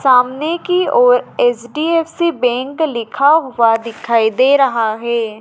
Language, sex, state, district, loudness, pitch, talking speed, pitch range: Hindi, female, Madhya Pradesh, Dhar, -14 LUFS, 255 Hz, 120 wpm, 235-315 Hz